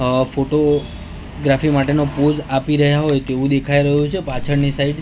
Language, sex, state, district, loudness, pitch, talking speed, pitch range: Gujarati, male, Gujarat, Gandhinagar, -17 LUFS, 140 Hz, 165 wpm, 135-145 Hz